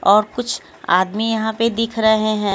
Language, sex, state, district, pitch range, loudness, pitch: Hindi, female, Haryana, Jhajjar, 210-225 Hz, -18 LUFS, 220 Hz